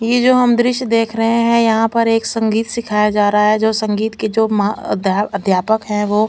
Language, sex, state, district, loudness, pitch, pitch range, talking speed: Hindi, female, Chandigarh, Chandigarh, -15 LUFS, 220 Hz, 210-230 Hz, 220 wpm